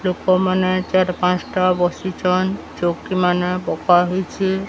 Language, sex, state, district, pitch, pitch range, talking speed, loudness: Odia, male, Odisha, Sambalpur, 185 Hz, 180-185 Hz, 100 wpm, -19 LUFS